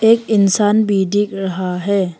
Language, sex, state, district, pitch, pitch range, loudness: Hindi, female, Arunachal Pradesh, Papum Pare, 200 Hz, 190-210 Hz, -16 LUFS